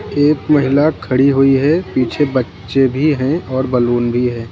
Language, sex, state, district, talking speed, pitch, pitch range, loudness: Hindi, male, Chhattisgarh, Raipur, 170 wpm, 135 Hz, 125-145 Hz, -15 LUFS